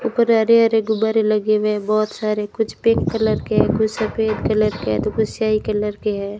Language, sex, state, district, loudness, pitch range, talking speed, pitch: Hindi, female, Rajasthan, Bikaner, -19 LUFS, 215-220 Hz, 225 wpm, 215 Hz